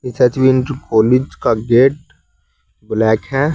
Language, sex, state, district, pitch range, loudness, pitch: Hindi, male, Uttar Pradesh, Saharanpur, 110-135 Hz, -15 LUFS, 125 Hz